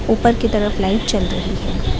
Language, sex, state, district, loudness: Hindi, female, Bihar, Gaya, -18 LUFS